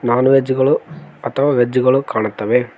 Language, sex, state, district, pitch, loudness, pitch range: Kannada, male, Karnataka, Koppal, 125 Hz, -16 LUFS, 120-130 Hz